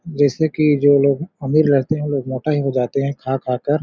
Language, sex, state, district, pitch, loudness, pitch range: Hindi, male, Chhattisgarh, Balrampur, 145 Hz, -18 LUFS, 135-155 Hz